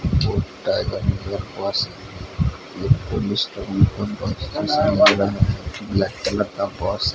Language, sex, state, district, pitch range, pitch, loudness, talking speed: Hindi, male, Odisha, Sambalpur, 100-105 Hz, 100 Hz, -21 LUFS, 40 wpm